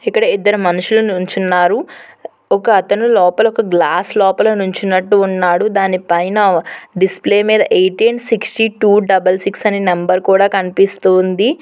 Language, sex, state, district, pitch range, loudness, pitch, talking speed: Telugu, female, Telangana, Hyderabad, 185-215 Hz, -13 LUFS, 195 Hz, 125 wpm